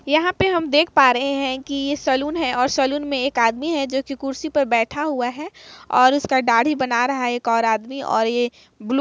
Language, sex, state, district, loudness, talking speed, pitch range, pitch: Hindi, female, Chhattisgarh, Kabirdham, -20 LUFS, 245 wpm, 245-290 Hz, 270 Hz